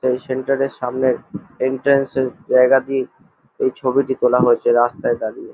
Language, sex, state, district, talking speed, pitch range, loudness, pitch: Bengali, male, West Bengal, Jalpaiguri, 150 wpm, 125-135 Hz, -18 LUFS, 130 Hz